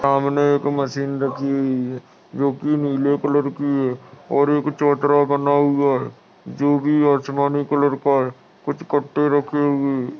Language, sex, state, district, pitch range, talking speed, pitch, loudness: Hindi, male, Chhattisgarh, Balrampur, 140-145 Hz, 175 wpm, 140 Hz, -20 LUFS